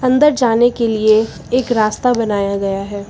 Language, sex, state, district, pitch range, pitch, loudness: Hindi, female, Uttar Pradesh, Lucknow, 205-245 Hz, 225 Hz, -15 LUFS